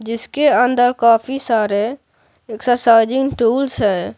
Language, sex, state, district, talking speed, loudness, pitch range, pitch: Hindi, male, Bihar, Patna, 100 wpm, -16 LUFS, 225-255 Hz, 235 Hz